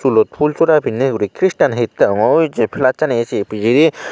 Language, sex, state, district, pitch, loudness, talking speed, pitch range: Chakma, male, Tripura, Unakoti, 135 Hz, -15 LUFS, 175 wpm, 115-160 Hz